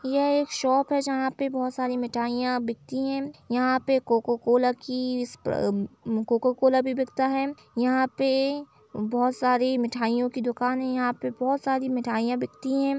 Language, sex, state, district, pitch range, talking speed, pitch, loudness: Hindi, female, Uttar Pradesh, Jalaun, 245-265 Hz, 180 wpm, 255 Hz, -26 LUFS